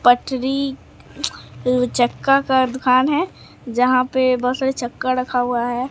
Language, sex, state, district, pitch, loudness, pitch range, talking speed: Hindi, female, Bihar, Katihar, 255 Hz, -19 LUFS, 250-265 Hz, 130 wpm